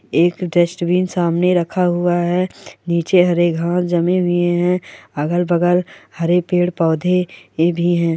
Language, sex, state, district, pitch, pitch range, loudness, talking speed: Hindi, female, Andhra Pradesh, Chittoor, 175 Hz, 170-180 Hz, -17 LUFS, 145 wpm